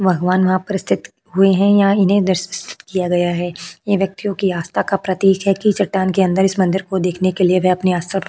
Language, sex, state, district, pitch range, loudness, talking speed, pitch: Hindi, female, Maharashtra, Chandrapur, 185-195 Hz, -17 LUFS, 225 wpm, 190 Hz